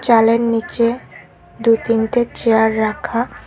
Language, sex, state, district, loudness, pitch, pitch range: Bengali, female, Tripura, Unakoti, -16 LUFS, 230 Hz, 225-235 Hz